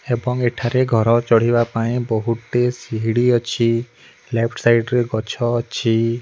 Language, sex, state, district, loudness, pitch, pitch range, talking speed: Odia, male, Odisha, Nuapada, -19 LUFS, 120 Hz, 115-120 Hz, 135 wpm